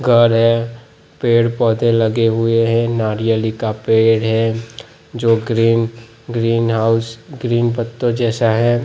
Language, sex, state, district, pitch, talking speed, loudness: Hindi, male, Gujarat, Gandhinagar, 115 Hz, 130 wpm, -16 LUFS